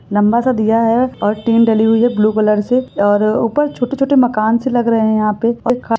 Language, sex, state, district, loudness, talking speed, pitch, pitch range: Hindi, female, Jharkhand, Sahebganj, -14 LUFS, 250 wpm, 230 Hz, 215-245 Hz